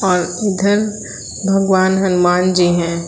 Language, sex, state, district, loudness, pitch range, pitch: Hindi, female, Uttar Pradesh, Lucknow, -15 LUFS, 180-195 Hz, 185 Hz